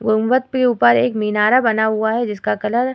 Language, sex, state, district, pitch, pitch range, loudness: Hindi, female, Bihar, Vaishali, 220 Hz, 210-250 Hz, -16 LUFS